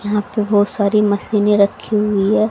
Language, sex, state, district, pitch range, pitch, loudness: Hindi, female, Haryana, Rohtak, 205-210 Hz, 210 Hz, -16 LUFS